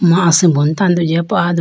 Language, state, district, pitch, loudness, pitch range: Idu Mishmi, Arunachal Pradesh, Lower Dibang Valley, 170 Hz, -13 LUFS, 165-180 Hz